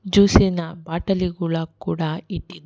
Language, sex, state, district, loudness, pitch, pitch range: Kannada, female, Karnataka, Bangalore, -21 LUFS, 170 Hz, 165-185 Hz